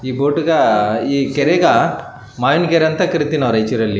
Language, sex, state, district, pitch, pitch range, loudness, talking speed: Kannada, male, Karnataka, Raichur, 140 Hz, 115-160 Hz, -15 LUFS, 195 wpm